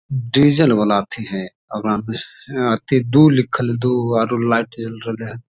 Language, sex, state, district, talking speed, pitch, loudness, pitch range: Maithili, male, Bihar, Samastipur, 175 wpm, 115 Hz, -18 LUFS, 115-125 Hz